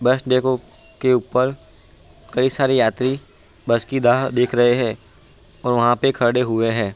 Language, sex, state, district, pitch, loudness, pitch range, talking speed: Hindi, male, Bihar, Bhagalpur, 120 Hz, -19 LUFS, 115-130 Hz, 170 wpm